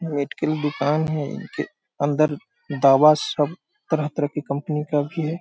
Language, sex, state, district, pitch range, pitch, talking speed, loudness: Hindi, male, Bihar, Sitamarhi, 145-160 Hz, 150 Hz, 145 wpm, -22 LUFS